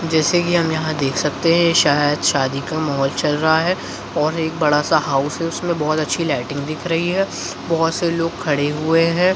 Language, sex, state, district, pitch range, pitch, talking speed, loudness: Hindi, male, Bihar, Jahanabad, 150-165 Hz, 160 Hz, 210 wpm, -18 LUFS